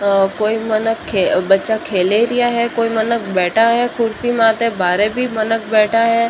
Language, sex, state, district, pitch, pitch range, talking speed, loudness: Marwari, female, Rajasthan, Churu, 225 Hz, 205-230 Hz, 160 wpm, -15 LUFS